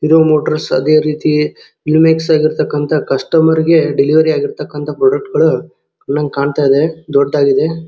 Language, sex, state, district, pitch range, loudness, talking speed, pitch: Kannada, male, Karnataka, Dharwad, 150-160 Hz, -13 LUFS, 120 wpm, 155 Hz